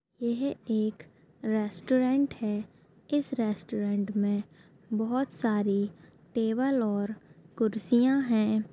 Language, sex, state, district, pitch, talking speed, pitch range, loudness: Hindi, female, Chhattisgarh, Bastar, 220 Hz, 90 wpm, 205-245 Hz, -29 LUFS